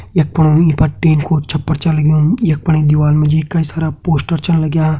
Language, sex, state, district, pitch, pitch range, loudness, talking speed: Hindi, male, Uttarakhand, Uttarkashi, 155 Hz, 150-160 Hz, -13 LUFS, 230 wpm